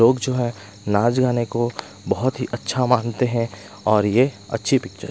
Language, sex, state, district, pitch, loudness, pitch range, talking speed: Hindi, male, Bihar, West Champaran, 120 Hz, -21 LUFS, 105-125 Hz, 190 wpm